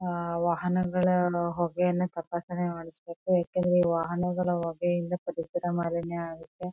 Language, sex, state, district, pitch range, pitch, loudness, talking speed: Kannada, female, Karnataka, Chamarajanagar, 170-180 Hz, 175 Hz, -29 LUFS, 90 wpm